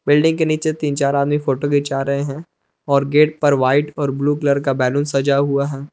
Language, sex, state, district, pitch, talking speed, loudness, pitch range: Hindi, male, Jharkhand, Palamu, 140 Hz, 220 wpm, -18 LUFS, 140-145 Hz